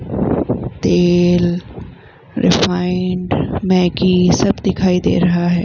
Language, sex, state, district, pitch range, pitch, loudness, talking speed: Hindi, female, Bihar, Vaishali, 175-180 Hz, 180 Hz, -15 LUFS, 85 wpm